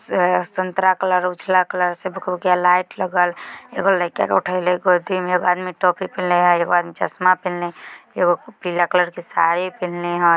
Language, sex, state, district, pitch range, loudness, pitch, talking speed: Bajjika, female, Bihar, Vaishali, 175-185 Hz, -19 LUFS, 180 Hz, 185 wpm